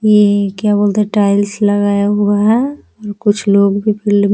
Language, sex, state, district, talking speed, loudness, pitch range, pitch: Hindi, female, Bihar, Araria, 165 wpm, -13 LUFS, 205-210 Hz, 205 Hz